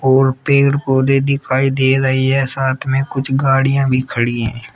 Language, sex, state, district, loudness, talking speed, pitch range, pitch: Hindi, female, Uttar Pradesh, Shamli, -15 LUFS, 175 wpm, 130-135 Hz, 135 Hz